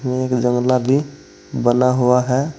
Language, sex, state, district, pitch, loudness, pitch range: Hindi, male, Uttar Pradesh, Saharanpur, 125 Hz, -17 LUFS, 125-130 Hz